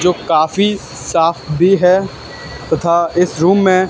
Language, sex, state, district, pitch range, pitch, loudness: Hindi, male, Haryana, Charkhi Dadri, 160-185 Hz, 175 Hz, -14 LUFS